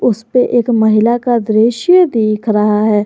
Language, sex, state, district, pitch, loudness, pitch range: Hindi, female, Jharkhand, Garhwa, 225 Hz, -12 LUFS, 215-245 Hz